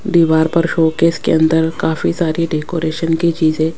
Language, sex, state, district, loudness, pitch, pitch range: Hindi, female, Rajasthan, Jaipur, -15 LUFS, 165 Hz, 160-170 Hz